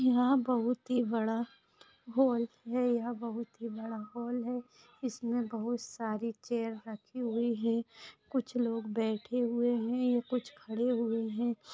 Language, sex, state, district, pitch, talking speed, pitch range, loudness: Hindi, female, Maharashtra, Sindhudurg, 235 Hz, 145 wpm, 230-245 Hz, -34 LUFS